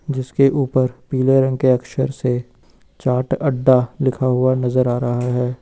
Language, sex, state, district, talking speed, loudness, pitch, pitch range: Hindi, male, Uttar Pradesh, Lucknow, 170 wpm, -18 LUFS, 130 Hz, 125-130 Hz